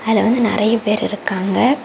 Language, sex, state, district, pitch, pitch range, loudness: Tamil, female, Tamil Nadu, Kanyakumari, 220 Hz, 210-230 Hz, -17 LUFS